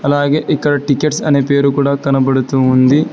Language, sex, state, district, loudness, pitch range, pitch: Telugu, male, Telangana, Hyderabad, -13 LUFS, 135-145 Hz, 140 Hz